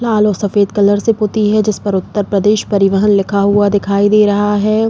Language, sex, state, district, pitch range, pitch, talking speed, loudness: Hindi, female, Uttar Pradesh, Jalaun, 200-210 Hz, 205 Hz, 220 wpm, -13 LUFS